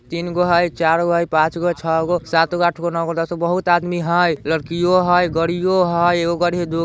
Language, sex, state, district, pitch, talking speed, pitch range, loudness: Hindi, male, Bihar, Vaishali, 170 Hz, 200 wpm, 165-175 Hz, -18 LUFS